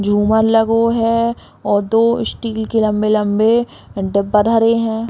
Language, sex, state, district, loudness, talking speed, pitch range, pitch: Bundeli, female, Uttar Pradesh, Hamirpur, -15 LUFS, 130 wpm, 210-230 Hz, 225 Hz